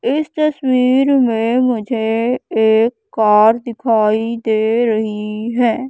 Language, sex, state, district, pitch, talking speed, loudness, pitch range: Hindi, female, Madhya Pradesh, Katni, 230 Hz, 100 wpm, -15 LUFS, 220-250 Hz